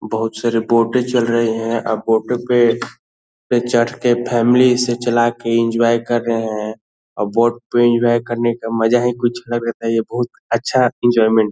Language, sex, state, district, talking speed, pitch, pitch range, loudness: Hindi, male, Bihar, Saran, 190 wpm, 120 Hz, 115-120 Hz, -17 LUFS